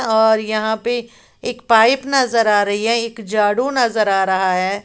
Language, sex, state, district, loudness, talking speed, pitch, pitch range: Hindi, female, Uttar Pradesh, Lalitpur, -16 LUFS, 185 wpm, 220 Hz, 205-240 Hz